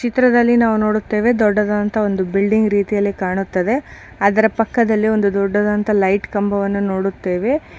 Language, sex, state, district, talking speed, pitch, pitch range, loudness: Kannada, female, Karnataka, Bijapur, 110 wpm, 210 Hz, 200-220 Hz, -17 LUFS